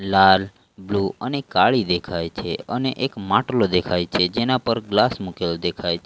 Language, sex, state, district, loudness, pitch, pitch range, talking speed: Gujarati, male, Gujarat, Valsad, -21 LUFS, 95 Hz, 90-115 Hz, 170 wpm